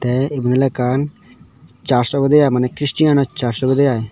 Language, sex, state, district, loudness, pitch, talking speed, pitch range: Chakma, male, Tripura, Dhalai, -16 LUFS, 135 Hz, 190 wpm, 125-140 Hz